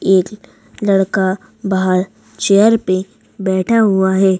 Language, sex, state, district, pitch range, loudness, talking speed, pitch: Hindi, female, Madhya Pradesh, Bhopal, 190-205 Hz, -15 LUFS, 110 wpm, 195 Hz